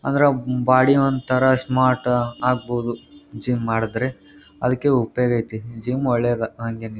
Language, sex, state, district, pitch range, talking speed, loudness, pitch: Kannada, male, Karnataka, Gulbarga, 115-130 Hz, 120 wpm, -21 LUFS, 125 Hz